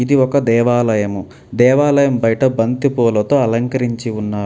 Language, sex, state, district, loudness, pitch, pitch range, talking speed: Telugu, male, Telangana, Hyderabad, -15 LUFS, 120 Hz, 115-130 Hz, 105 wpm